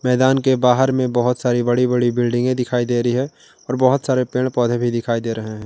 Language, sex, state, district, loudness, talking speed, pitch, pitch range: Hindi, male, Jharkhand, Ranchi, -18 LUFS, 245 wpm, 125 Hz, 120-130 Hz